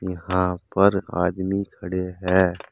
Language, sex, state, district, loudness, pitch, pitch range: Hindi, male, Uttar Pradesh, Saharanpur, -23 LUFS, 95 Hz, 90-95 Hz